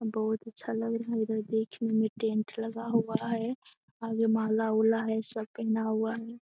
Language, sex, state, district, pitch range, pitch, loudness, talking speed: Hindi, female, Bihar, Jamui, 220-230 Hz, 225 Hz, -31 LUFS, 185 wpm